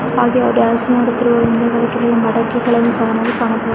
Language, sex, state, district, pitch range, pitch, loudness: Kannada, female, Karnataka, Bijapur, 230-235 Hz, 235 Hz, -14 LUFS